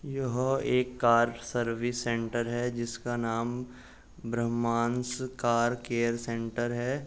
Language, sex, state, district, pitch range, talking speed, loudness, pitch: Hindi, male, Uttar Pradesh, Jalaun, 115-125 Hz, 110 wpm, -30 LUFS, 120 Hz